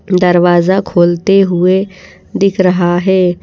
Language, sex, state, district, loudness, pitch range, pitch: Hindi, female, Madhya Pradesh, Bhopal, -11 LUFS, 175-190 Hz, 185 Hz